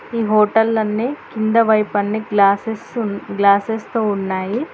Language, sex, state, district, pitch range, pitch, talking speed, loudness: Telugu, female, Telangana, Hyderabad, 205-225 Hz, 215 Hz, 115 wpm, -17 LUFS